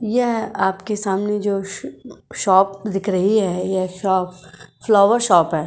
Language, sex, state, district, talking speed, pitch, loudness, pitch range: Hindi, female, Uttar Pradesh, Jyotiba Phule Nagar, 135 wpm, 195 Hz, -19 LUFS, 185-205 Hz